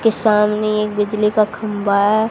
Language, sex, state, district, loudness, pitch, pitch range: Hindi, female, Haryana, Jhajjar, -17 LUFS, 210 Hz, 210-215 Hz